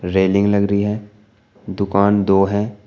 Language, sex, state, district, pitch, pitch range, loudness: Hindi, male, Uttar Pradesh, Shamli, 100 Hz, 100-105 Hz, -17 LUFS